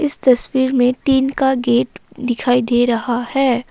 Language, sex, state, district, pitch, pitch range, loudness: Hindi, female, Assam, Kamrup Metropolitan, 250 Hz, 240-265 Hz, -16 LUFS